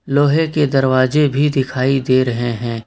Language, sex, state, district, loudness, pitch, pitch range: Hindi, male, Jharkhand, Ranchi, -16 LUFS, 135 Hz, 130-145 Hz